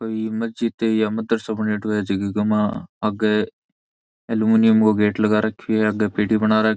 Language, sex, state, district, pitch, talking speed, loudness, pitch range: Marwari, male, Rajasthan, Churu, 110 Hz, 175 wpm, -20 LUFS, 105-110 Hz